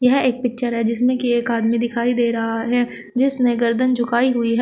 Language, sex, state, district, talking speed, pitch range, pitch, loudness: Hindi, female, Uttar Pradesh, Shamli, 220 wpm, 235-250 Hz, 240 Hz, -18 LUFS